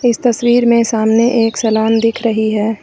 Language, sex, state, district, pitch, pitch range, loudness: Hindi, female, Uttar Pradesh, Lucknow, 230 Hz, 220-235 Hz, -13 LUFS